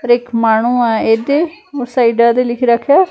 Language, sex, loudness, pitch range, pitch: Punjabi, female, -13 LUFS, 235-270 Hz, 240 Hz